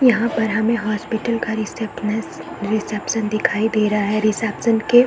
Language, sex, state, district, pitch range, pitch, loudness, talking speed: Hindi, female, Bihar, East Champaran, 210-230 Hz, 220 Hz, -20 LUFS, 175 wpm